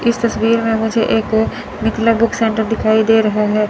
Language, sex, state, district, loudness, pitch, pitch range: Hindi, female, Chandigarh, Chandigarh, -15 LUFS, 225 Hz, 220-230 Hz